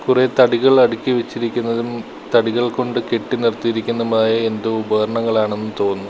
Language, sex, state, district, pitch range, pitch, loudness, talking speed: Malayalam, male, Kerala, Kollam, 110-120 Hz, 115 Hz, -18 LUFS, 120 wpm